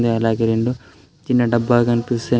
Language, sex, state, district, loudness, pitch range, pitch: Telugu, male, Telangana, Adilabad, -18 LUFS, 115-120 Hz, 120 Hz